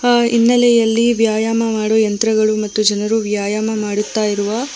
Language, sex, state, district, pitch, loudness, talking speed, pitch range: Kannada, female, Karnataka, Bangalore, 220 Hz, -15 LUFS, 140 wpm, 210-230 Hz